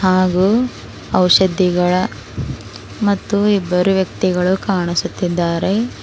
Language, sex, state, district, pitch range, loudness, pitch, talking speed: Kannada, female, Karnataka, Bidar, 180-195 Hz, -16 LUFS, 185 Hz, 60 wpm